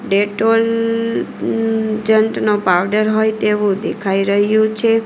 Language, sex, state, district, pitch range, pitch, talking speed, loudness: Gujarati, female, Gujarat, Valsad, 205-225 Hz, 215 Hz, 95 wpm, -16 LUFS